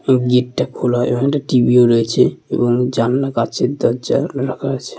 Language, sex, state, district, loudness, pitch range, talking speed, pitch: Bengali, male, West Bengal, Malda, -16 LUFS, 120-135 Hz, 180 wpm, 125 Hz